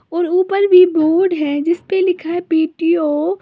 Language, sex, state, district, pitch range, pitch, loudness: Hindi, female, Uttar Pradesh, Lalitpur, 320-365 Hz, 345 Hz, -15 LUFS